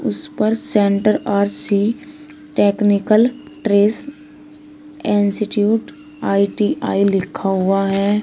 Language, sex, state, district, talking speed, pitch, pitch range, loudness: Hindi, female, Uttar Pradesh, Shamli, 85 wpm, 215 Hz, 200-295 Hz, -17 LUFS